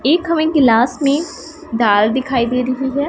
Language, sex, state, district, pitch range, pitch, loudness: Hindi, female, Punjab, Pathankot, 240-315 Hz, 265 Hz, -15 LUFS